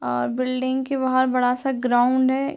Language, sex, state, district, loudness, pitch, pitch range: Hindi, female, Bihar, Darbhanga, -21 LUFS, 255 Hz, 250-265 Hz